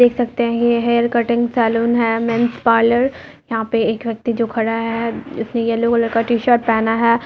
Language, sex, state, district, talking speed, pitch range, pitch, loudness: Hindi, female, Bihar, Muzaffarpur, 215 wpm, 230-235 Hz, 230 Hz, -17 LUFS